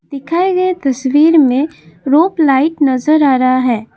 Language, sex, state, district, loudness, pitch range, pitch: Hindi, female, Assam, Kamrup Metropolitan, -12 LUFS, 260-320 Hz, 285 Hz